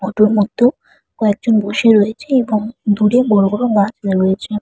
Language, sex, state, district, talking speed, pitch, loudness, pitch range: Bengali, female, West Bengal, Purulia, 145 wpm, 215 Hz, -15 LUFS, 205-230 Hz